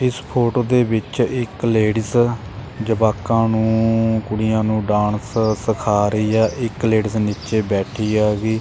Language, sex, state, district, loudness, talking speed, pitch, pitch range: Punjabi, male, Punjab, Kapurthala, -18 LUFS, 140 wpm, 110 Hz, 110-115 Hz